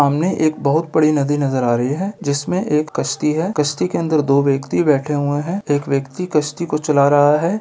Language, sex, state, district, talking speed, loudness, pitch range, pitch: Hindi, male, Bihar, Kishanganj, 230 wpm, -17 LUFS, 140-160 Hz, 150 Hz